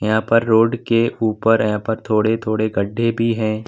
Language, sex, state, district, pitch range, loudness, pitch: Hindi, male, Bihar, Samastipur, 110-115 Hz, -18 LUFS, 110 Hz